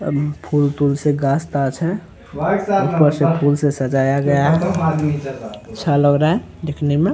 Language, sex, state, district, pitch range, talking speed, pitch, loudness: Hindi, male, Bihar, Araria, 140-160 Hz, 150 wpm, 145 Hz, -18 LUFS